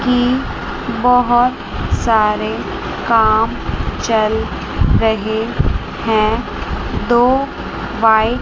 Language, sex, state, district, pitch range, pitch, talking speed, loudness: Hindi, male, Chandigarh, Chandigarh, 220-245 Hz, 230 Hz, 55 wpm, -16 LUFS